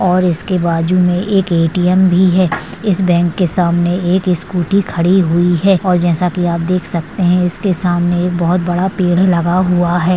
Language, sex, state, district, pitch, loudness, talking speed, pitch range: Hindi, female, Maharashtra, Sindhudurg, 180 Hz, -13 LUFS, 195 wpm, 175-185 Hz